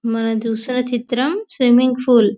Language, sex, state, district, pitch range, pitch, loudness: Telugu, female, Telangana, Nalgonda, 225-255 Hz, 245 Hz, -17 LUFS